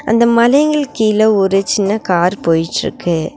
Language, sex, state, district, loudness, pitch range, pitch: Tamil, female, Tamil Nadu, Nilgiris, -13 LUFS, 180-235 Hz, 215 Hz